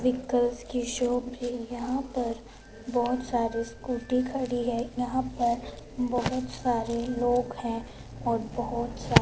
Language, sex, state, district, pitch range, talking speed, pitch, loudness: Hindi, female, Punjab, Fazilka, 240-250 Hz, 130 wpm, 245 Hz, -29 LUFS